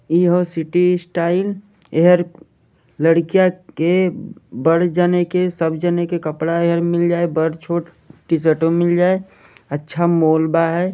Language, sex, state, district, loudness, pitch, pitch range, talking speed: Bhojpuri, male, Jharkhand, Sahebganj, -17 LUFS, 170 Hz, 165-180 Hz, 135 wpm